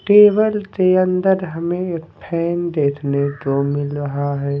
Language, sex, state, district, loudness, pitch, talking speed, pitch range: Hindi, male, Delhi, New Delhi, -18 LUFS, 170 Hz, 145 wpm, 140-185 Hz